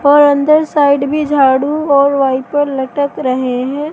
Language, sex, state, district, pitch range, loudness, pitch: Hindi, female, Madhya Pradesh, Katni, 265-295 Hz, -12 LUFS, 285 Hz